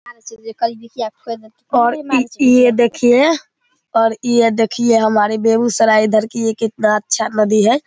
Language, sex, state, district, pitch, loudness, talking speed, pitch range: Hindi, male, Bihar, Begusarai, 230 Hz, -15 LUFS, 115 wpm, 220-240 Hz